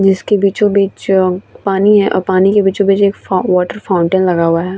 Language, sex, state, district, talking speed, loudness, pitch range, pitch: Hindi, female, Bihar, Vaishali, 200 wpm, -13 LUFS, 185-200 Hz, 195 Hz